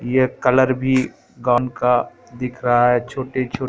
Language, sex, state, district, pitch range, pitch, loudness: Hindi, male, Madhya Pradesh, Katni, 120-130 Hz, 125 Hz, -19 LUFS